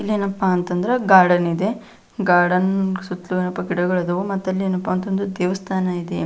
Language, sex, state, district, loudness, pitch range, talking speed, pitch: Kannada, female, Karnataka, Belgaum, -20 LUFS, 180-195 Hz, 145 wpm, 185 Hz